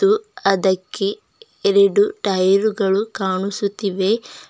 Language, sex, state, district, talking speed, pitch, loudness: Kannada, female, Karnataka, Bidar, 80 wpm, 205 Hz, -19 LUFS